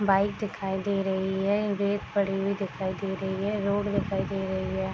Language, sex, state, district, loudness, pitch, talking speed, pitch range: Hindi, female, Bihar, East Champaran, -28 LUFS, 195 Hz, 205 wpm, 190-200 Hz